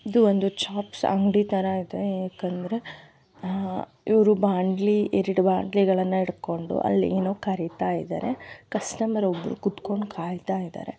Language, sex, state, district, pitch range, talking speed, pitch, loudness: Kannada, female, Karnataka, Dharwad, 185-205 Hz, 120 wpm, 195 Hz, -25 LUFS